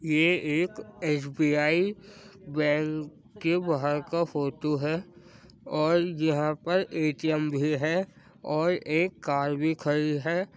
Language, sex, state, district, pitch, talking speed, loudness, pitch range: Hindi, male, Uttar Pradesh, Jyotiba Phule Nagar, 155 Hz, 130 wpm, -27 LUFS, 150-175 Hz